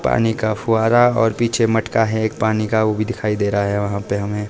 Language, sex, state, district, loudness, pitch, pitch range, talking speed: Hindi, male, Himachal Pradesh, Shimla, -18 LUFS, 110 Hz, 105-115 Hz, 255 wpm